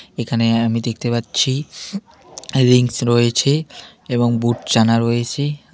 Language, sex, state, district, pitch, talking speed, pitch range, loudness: Bengali, male, West Bengal, Alipurduar, 120 Hz, 125 wpm, 115-135 Hz, -17 LUFS